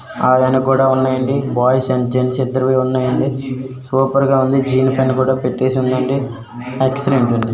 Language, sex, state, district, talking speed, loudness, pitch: Telugu, male, Andhra Pradesh, Srikakulam, 145 wpm, -16 LUFS, 130 Hz